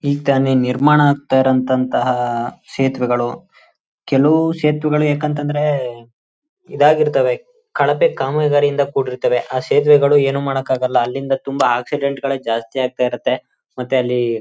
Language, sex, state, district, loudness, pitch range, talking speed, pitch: Kannada, male, Karnataka, Chamarajanagar, -17 LUFS, 130-150 Hz, 110 wpm, 135 Hz